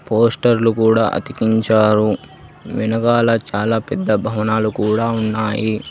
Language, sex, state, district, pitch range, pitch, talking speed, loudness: Telugu, male, Telangana, Hyderabad, 110-115 Hz, 110 Hz, 90 wpm, -17 LUFS